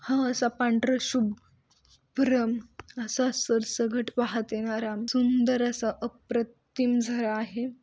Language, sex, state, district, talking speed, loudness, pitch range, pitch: Marathi, female, Maharashtra, Sindhudurg, 105 wpm, -28 LUFS, 230-250 Hz, 240 Hz